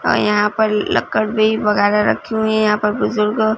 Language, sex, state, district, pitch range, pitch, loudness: Hindi, female, Punjab, Fazilka, 210-220 Hz, 215 Hz, -16 LUFS